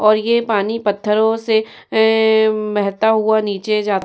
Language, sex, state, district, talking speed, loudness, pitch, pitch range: Hindi, female, Uttar Pradesh, Jyotiba Phule Nagar, 165 wpm, -16 LUFS, 215 Hz, 210-220 Hz